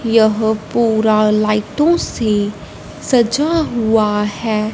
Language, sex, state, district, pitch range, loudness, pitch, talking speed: Hindi, female, Punjab, Fazilka, 215-235 Hz, -15 LUFS, 220 Hz, 90 wpm